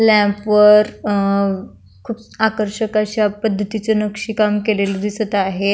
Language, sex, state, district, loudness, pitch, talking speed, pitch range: Marathi, female, Maharashtra, Pune, -17 LUFS, 210 Hz, 125 wpm, 200-215 Hz